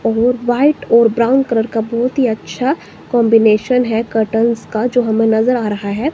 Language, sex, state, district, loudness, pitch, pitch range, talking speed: Hindi, female, Himachal Pradesh, Shimla, -14 LUFS, 235 Hz, 225-250 Hz, 185 wpm